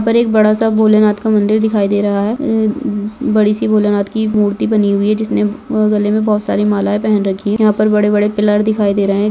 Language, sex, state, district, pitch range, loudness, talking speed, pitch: Hindi, male, Rajasthan, Churu, 205-220 Hz, -13 LUFS, 245 wpm, 210 Hz